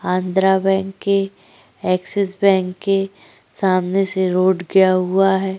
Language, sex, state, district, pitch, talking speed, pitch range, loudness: Hindi, female, Uttar Pradesh, Jyotiba Phule Nagar, 190 Hz, 130 wpm, 185-195 Hz, -18 LUFS